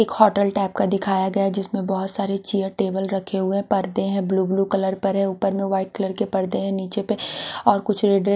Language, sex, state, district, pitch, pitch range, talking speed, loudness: Hindi, female, Punjab, Pathankot, 195 Hz, 190-200 Hz, 215 wpm, -22 LUFS